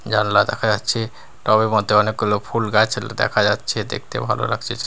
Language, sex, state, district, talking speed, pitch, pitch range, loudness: Bengali, male, Bihar, Katihar, 160 wpm, 110 Hz, 105-115 Hz, -19 LUFS